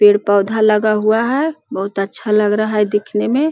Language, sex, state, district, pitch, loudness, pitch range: Hindi, female, Bihar, Jahanabad, 215 Hz, -16 LUFS, 210-225 Hz